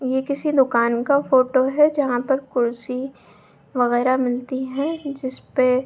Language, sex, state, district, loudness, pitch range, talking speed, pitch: Hindi, female, Bihar, Saharsa, -21 LUFS, 245-275 Hz, 145 wpm, 260 Hz